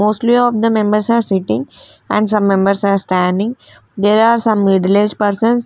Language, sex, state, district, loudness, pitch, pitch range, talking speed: English, female, Punjab, Fazilka, -14 LUFS, 210 Hz, 195-230 Hz, 180 wpm